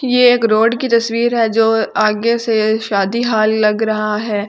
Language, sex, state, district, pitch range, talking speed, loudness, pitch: Hindi, female, Delhi, New Delhi, 215-235 Hz, 185 wpm, -14 LUFS, 225 Hz